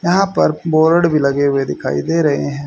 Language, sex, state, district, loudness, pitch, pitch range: Hindi, male, Haryana, Rohtak, -15 LUFS, 155 Hz, 145-165 Hz